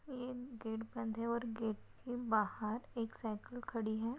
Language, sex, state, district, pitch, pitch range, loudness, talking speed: Hindi, female, Maharashtra, Nagpur, 230 Hz, 220-245 Hz, -41 LUFS, 170 wpm